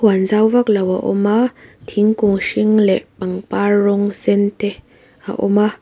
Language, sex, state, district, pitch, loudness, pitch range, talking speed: Mizo, female, Mizoram, Aizawl, 205 Hz, -16 LUFS, 200-215 Hz, 165 wpm